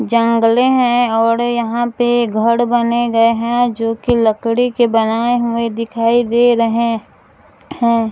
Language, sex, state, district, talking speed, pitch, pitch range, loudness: Hindi, female, Bihar, Gaya, 125 wpm, 235 Hz, 230-240 Hz, -15 LUFS